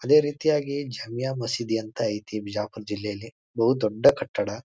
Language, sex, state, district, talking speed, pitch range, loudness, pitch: Kannada, male, Karnataka, Bijapur, 140 wpm, 105-135 Hz, -26 LUFS, 115 Hz